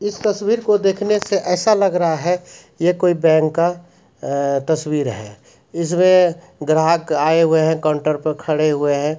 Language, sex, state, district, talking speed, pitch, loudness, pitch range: Hindi, male, Bihar, Supaul, 170 wpm, 165 Hz, -17 LUFS, 155-180 Hz